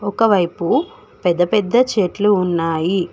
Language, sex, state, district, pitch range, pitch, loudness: Telugu, female, Telangana, Hyderabad, 175-210 Hz, 190 Hz, -17 LUFS